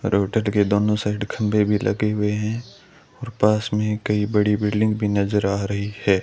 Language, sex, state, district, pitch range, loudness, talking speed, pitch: Hindi, male, Rajasthan, Bikaner, 100-105 Hz, -21 LUFS, 185 wpm, 105 Hz